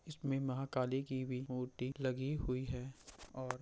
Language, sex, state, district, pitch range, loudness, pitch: Hindi, male, Bihar, Purnia, 125-135 Hz, -40 LUFS, 130 Hz